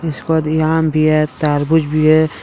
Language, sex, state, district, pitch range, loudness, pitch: Hindi, male, Jharkhand, Deoghar, 155-160 Hz, -15 LUFS, 155 Hz